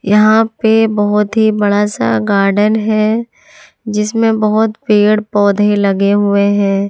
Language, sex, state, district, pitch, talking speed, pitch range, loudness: Hindi, female, Jharkhand, Ranchi, 210 Hz, 120 wpm, 205-220 Hz, -12 LUFS